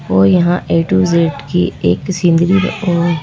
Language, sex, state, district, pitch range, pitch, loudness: Hindi, female, Madhya Pradesh, Bhopal, 165-180 Hz, 175 Hz, -13 LUFS